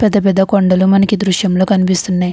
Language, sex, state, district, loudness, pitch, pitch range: Telugu, female, Andhra Pradesh, Chittoor, -12 LUFS, 190 Hz, 185-200 Hz